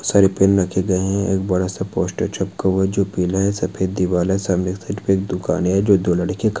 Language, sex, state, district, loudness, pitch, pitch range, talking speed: Hindi, male, Bihar, Saran, -19 LUFS, 95 Hz, 90-100 Hz, 265 wpm